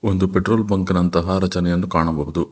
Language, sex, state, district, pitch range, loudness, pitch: Kannada, male, Karnataka, Bangalore, 85-95 Hz, -19 LUFS, 90 Hz